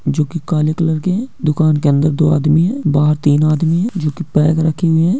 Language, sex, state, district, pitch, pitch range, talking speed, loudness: Hindi, male, Jharkhand, Jamtara, 155 Hz, 150-170 Hz, 255 wpm, -15 LUFS